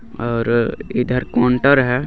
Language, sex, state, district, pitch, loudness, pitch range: Hindi, male, Jharkhand, Garhwa, 125 Hz, -17 LUFS, 120-130 Hz